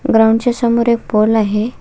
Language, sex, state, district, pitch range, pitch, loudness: Marathi, female, Maharashtra, Solapur, 220-235 Hz, 225 Hz, -14 LUFS